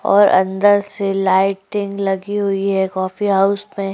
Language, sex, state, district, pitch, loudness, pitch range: Hindi, female, Uttar Pradesh, Jyotiba Phule Nagar, 195 Hz, -17 LUFS, 195-205 Hz